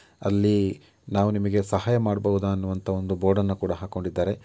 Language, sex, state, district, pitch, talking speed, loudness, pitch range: Kannada, male, Karnataka, Mysore, 100 Hz, 135 wpm, -25 LUFS, 95-105 Hz